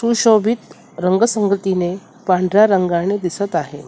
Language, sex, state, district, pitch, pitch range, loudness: Marathi, female, Maharashtra, Mumbai Suburban, 200 Hz, 185-220 Hz, -17 LUFS